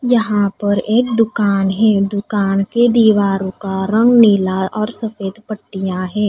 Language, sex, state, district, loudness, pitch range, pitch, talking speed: Hindi, female, Odisha, Nuapada, -15 LUFS, 195-225 Hz, 205 Hz, 145 wpm